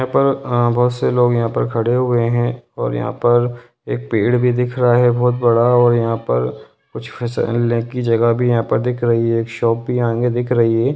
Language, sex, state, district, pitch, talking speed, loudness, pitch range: Hindi, male, Bihar, Lakhisarai, 120 Hz, 230 wpm, -17 LUFS, 115-125 Hz